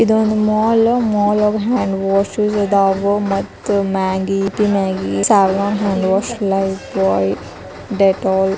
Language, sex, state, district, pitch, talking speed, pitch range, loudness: Kannada, male, Karnataka, Dharwad, 195 Hz, 100 wpm, 190-210 Hz, -16 LUFS